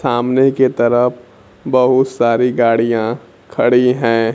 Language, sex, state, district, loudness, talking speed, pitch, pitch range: Hindi, male, Bihar, Kaimur, -14 LUFS, 110 wpm, 120 Hz, 115-125 Hz